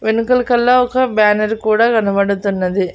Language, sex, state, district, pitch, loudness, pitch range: Telugu, female, Andhra Pradesh, Annamaya, 220 Hz, -14 LUFS, 200-240 Hz